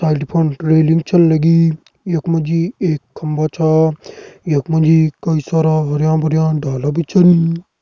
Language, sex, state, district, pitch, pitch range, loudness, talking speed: Garhwali, male, Uttarakhand, Uttarkashi, 160 Hz, 155-165 Hz, -15 LUFS, 130 wpm